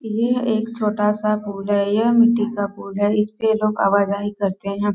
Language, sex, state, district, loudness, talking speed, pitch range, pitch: Hindi, female, Bihar, East Champaran, -20 LUFS, 205 wpm, 200-220 Hz, 210 Hz